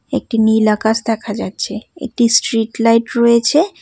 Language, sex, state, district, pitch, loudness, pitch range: Bengali, female, West Bengal, Cooch Behar, 230 Hz, -15 LUFS, 220-235 Hz